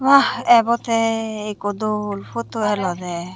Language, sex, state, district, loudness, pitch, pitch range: Chakma, female, Tripura, Unakoti, -20 LUFS, 215 Hz, 205-235 Hz